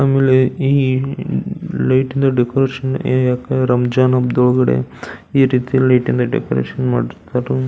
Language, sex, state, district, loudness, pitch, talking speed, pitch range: Kannada, male, Karnataka, Belgaum, -16 LUFS, 130 Hz, 85 wpm, 125-135 Hz